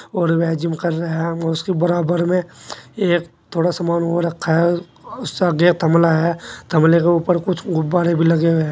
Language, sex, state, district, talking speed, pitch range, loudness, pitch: Hindi, male, Uttar Pradesh, Saharanpur, 190 wpm, 165-175 Hz, -18 LUFS, 170 Hz